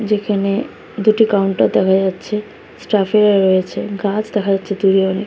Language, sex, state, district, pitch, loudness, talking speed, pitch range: Bengali, female, West Bengal, Kolkata, 200 Hz, -16 LUFS, 150 wpm, 195-210 Hz